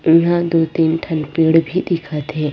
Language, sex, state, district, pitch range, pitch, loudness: Chhattisgarhi, female, Chhattisgarh, Rajnandgaon, 155-170 Hz, 165 Hz, -16 LUFS